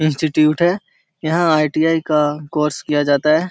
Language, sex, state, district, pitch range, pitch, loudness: Hindi, male, Bihar, Jahanabad, 150-165 Hz, 155 Hz, -17 LUFS